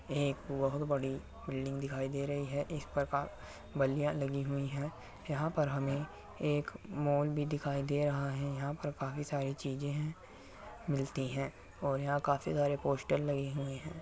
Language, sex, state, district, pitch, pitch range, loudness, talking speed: Hindi, male, Uttar Pradesh, Muzaffarnagar, 140 Hz, 135-145 Hz, -36 LUFS, 175 wpm